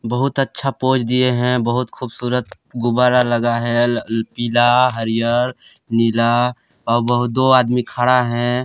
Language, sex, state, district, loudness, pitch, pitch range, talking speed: Hindi, male, Chhattisgarh, Sarguja, -17 LUFS, 120 Hz, 120-125 Hz, 140 wpm